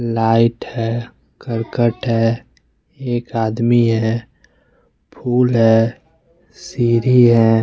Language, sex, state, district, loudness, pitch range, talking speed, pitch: Hindi, male, Bihar, West Champaran, -16 LUFS, 115-120 Hz, 85 wpm, 115 Hz